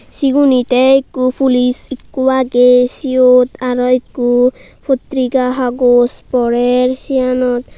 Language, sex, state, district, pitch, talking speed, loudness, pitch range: Chakma, female, Tripura, Unakoti, 255 Hz, 100 wpm, -13 LUFS, 250-260 Hz